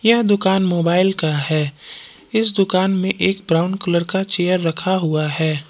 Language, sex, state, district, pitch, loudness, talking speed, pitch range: Hindi, male, Jharkhand, Palamu, 185 Hz, -17 LUFS, 170 wpm, 160-195 Hz